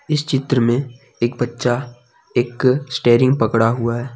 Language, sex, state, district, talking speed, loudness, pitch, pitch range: Hindi, male, Jharkhand, Deoghar, 145 wpm, -18 LUFS, 120 Hz, 120-130 Hz